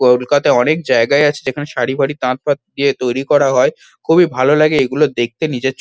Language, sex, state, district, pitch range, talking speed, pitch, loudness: Bengali, male, West Bengal, Kolkata, 130-150 Hz, 205 wpm, 140 Hz, -14 LUFS